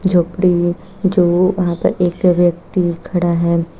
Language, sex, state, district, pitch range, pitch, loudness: Hindi, female, Uttar Pradesh, Shamli, 175-185 Hz, 175 Hz, -16 LUFS